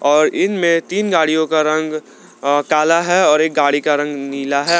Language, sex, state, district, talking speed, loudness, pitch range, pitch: Hindi, male, Jharkhand, Garhwa, 185 wpm, -16 LUFS, 145-165 Hz, 155 Hz